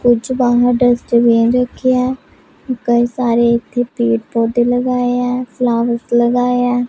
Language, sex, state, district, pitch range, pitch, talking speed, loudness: Hindi, female, Punjab, Pathankot, 235-250 Hz, 245 Hz, 130 wpm, -15 LUFS